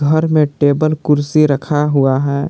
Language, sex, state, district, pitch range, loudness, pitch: Hindi, male, Jharkhand, Palamu, 140-155 Hz, -14 LUFS, 145 Hz